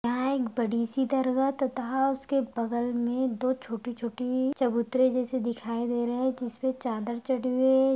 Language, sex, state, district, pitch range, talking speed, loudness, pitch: Hindi, female, Bihar, Sitamarhi, 235-260 Hz, 175 wpm, -28 LUFS, 255 Hz